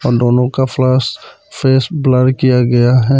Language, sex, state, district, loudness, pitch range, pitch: Hindi, male, Arunachal Pradesh, Papum Pare, -13 LUFS, 125-130 Hz, 130 Hz